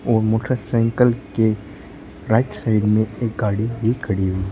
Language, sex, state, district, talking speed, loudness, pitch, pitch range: Hindi, male, Uttar Pradesh, Shamli, 160 wpm, -20 LUFS, 110 Hz, 105-120 Hz